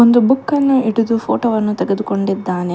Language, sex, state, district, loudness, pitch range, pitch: Kannada, female, Karnataka, Bangalore, -16 LUFS, 195-240 Hz, 225 Hz